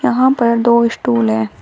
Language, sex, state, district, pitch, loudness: Hindi, female, Uttar Pradesh, Shamli, 235 Hz, -14 LUFS